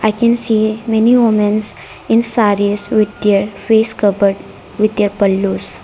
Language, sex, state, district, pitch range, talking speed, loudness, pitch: English, female, Arunachal Pradesh, Lower Dibang Valley, 205-220 Hz, 155 wpm, -14 LUFS, 210 Hz